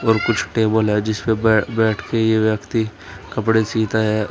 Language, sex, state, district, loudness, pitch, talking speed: Hindi, male, Uttar Pradesh, Shamli, -19 LUFS, 110 Hz, 165 wpm